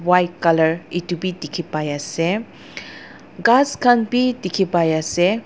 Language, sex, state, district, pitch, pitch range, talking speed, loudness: Nagamese, female, Nagaland, Dimapur, 175 Hz, 165-210 Hz, 100 wpm, -19 LUFS